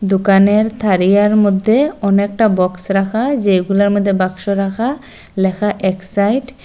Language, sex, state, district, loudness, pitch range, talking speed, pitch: Bengali, female, Assam, Hailakandi, -14 LUFS, 195-215 Hz, 115 wpm, 200 Hz